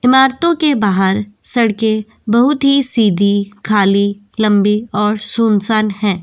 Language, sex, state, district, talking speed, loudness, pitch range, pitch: Hindi, female, Goa, North and South Goa, 115 wpm, -14 LUFS, 205-235 Hz, 215 Hz